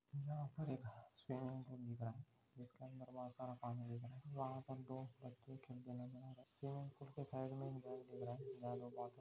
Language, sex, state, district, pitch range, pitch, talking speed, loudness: Hindi, male, Maharashtra, Nagpur, 125-135 Hz, 130 Hz, 240 wpm, -51 LUFS